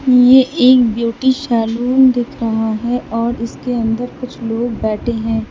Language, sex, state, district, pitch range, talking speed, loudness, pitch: Hindi, female, Uttar Pradesh, Lalitpur, 225-250 Hz, 150 wpm, -15 LUFS, 235 Hz